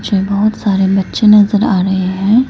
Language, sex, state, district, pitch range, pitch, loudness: Hindi, female, Arunachal Pradesh, Lower Dibang Valley, 190-215 Hz, 200 Hz, -12 LUFS